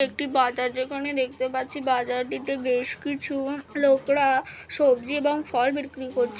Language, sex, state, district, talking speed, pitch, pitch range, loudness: Bengali, female, West Bengal, Malda, 140 wpm, 270 Hz, 255-285 Hz, -25 LUFS